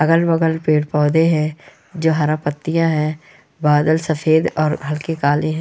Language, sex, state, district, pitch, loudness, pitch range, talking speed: Hindi, female, Bihar, Saran, 155 Hz, -17 LUFS, 150-160 Hz, 170 wpm